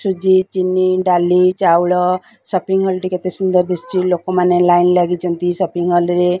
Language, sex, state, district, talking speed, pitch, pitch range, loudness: Odia, female, Odisha, Sambalpur, 160 wpm, 180 Hz, 175-185 Hz, -15 LUFS